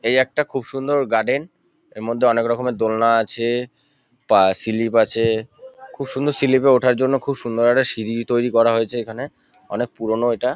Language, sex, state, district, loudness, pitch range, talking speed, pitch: Bengali, male, West Bengal, North 24 Parganas, -19 LUFS, 115-135 Hz, 175 wpm, 120 Hz